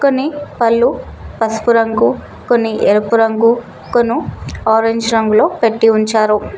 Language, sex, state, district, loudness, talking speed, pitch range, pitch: Telugu, female, Telangana, Mahabubabad, -14 LUFS, 110 wpm, 220-235 Hz, 225 Hz